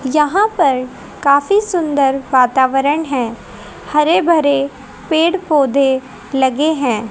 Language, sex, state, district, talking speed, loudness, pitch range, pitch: Hindi, female, Haryana, Rohtak, 100 wpm, -15 LUFS, 260-315 Hz, 280 Hz